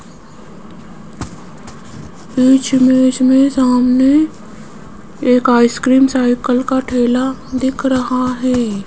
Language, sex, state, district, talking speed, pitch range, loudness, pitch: Hindi, female, Rajasthan, Jaipur, 80 wpm, 250-265 Hz, -13 LUFS, 255 Hz